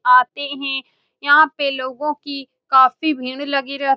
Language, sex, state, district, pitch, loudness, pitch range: Hindi, female, Bihar, Saran, 275 Hz, -18 LUFS, 260-285 Hz